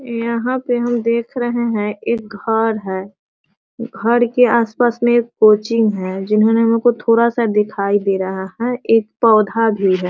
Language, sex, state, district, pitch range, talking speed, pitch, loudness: Hindi, female, Bihar, Sitamarhi, 210-235 Hz, 165 wpm, 225 Hz, -16 LUFS